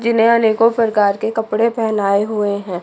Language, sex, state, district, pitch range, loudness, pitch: Hindi, female, Chandigarh, Chandigarh, 205-225 Hz, -16 LUFS, 220 Hz